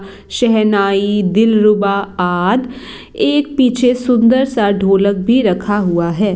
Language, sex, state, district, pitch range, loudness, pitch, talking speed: Hindi, female, Chhattisgarh, Bilaspur, 195-245 Hz, -13 LUFS, 205 Hz, 115 wpm